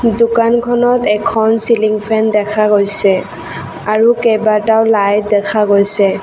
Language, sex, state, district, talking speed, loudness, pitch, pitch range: Assamese, female, Assam, Kamrup Metropolitan, 105 wpm, -12 LUFS, 215 Hz, 205-230 Hz